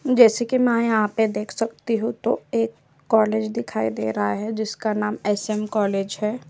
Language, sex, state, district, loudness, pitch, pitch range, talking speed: Hindi, female, Maharashtra, Chandrapur, -22 LUFS, 215 Hz, 205-230 Hz, 195 wpm